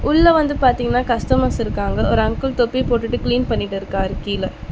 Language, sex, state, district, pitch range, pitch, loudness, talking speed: Tamil, female, Tamil Nadu, Chennai, 215-260 Hz, 245 Hz, -18 LUFS, 150 wpm